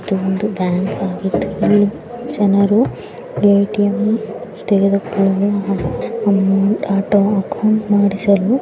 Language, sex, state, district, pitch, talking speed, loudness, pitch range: Kannada, female, Karnataka, Chamarajanagar, 200 Hz, 70 wpm, -16 LUFS, 195-210 Hz